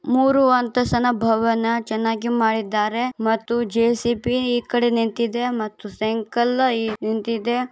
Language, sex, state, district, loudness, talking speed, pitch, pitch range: Kannada, female, Karnataka, Bijapur, -21 LUFS, 100 wpm, 235 Hz, 225-245 Hz